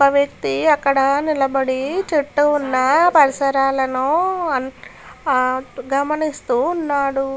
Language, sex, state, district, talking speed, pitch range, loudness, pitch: Telugu, female, Karnataka, Bellary, 80 wpm, 270-305 Hz, -18 LUFS, 280 Hz